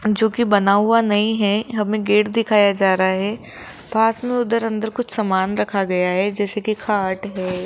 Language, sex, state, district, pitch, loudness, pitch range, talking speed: Hindi, female, Rajasthan, Jaipur, 210 Hz, -19 LUFS, 195-220 Hz, 195 wpm